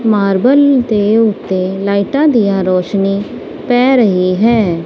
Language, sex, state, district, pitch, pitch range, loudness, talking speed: Punjabi, female, Punjab, Kapurthala, 205 Hz, 195-245 Hz, -12 LUFS, 110 wpm